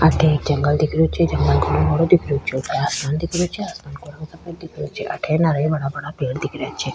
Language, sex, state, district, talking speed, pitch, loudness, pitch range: Rajasthani, female, Rajasthan, Churu, 250 wpm, 150 Hz, -20 LUFS, 140-160 Hz